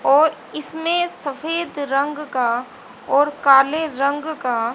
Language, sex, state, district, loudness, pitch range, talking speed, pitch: Hindi, female, Haryana, Charkhi Dadri, -20 LUFS, 270-315 Hz, 125 wpm, 285 Hz